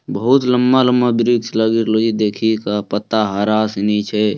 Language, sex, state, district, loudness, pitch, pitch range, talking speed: Hindi, male, Bihar, Bhagalpur, -16 LUFS, 110 Hz, 105-120 Hz, 150 wpm